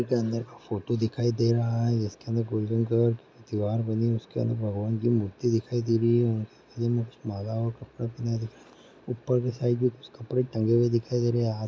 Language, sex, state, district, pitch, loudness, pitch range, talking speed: Hindi, male, Bihar, Gaya, 115 Hz, -28 LUFS, 115-120 Hz, 210 wpm